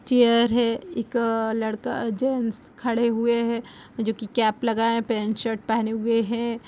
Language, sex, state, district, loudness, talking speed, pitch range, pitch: Hindi, female, Chhattisgarh, Kabirdham, -24 LUFS, 160 wpm, 225-235 Hz, 230 Hz